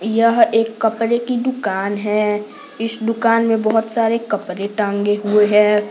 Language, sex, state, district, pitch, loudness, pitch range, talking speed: Hindi, female, Bihar, Gaya, 225 Hz, -17 LUFS, 210-230 Hz, 150 wpm